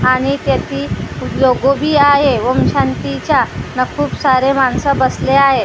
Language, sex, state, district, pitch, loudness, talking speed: Marathi, female, Maharashtra, Gondia, 260 Hz, -14 LUFS, 150 wpm